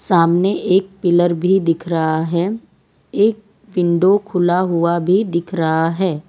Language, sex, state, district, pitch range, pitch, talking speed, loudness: Hindi, female, Gujarat, Valsad, 170-195 Hz, 175 Hz, 145 wpm, -17 LUFS